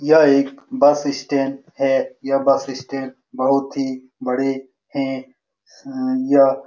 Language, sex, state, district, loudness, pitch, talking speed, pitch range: Hindi, male, Bihar, Saran, -19 LUFS, 135 Hz, 115 wpm, 135-140 Hz